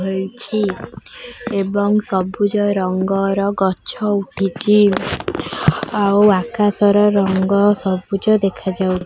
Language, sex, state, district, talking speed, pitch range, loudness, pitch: Odia, female, Odisha, Khordha, 85 wpm, 190-205 Hz, -17 LUFS, 200 Hz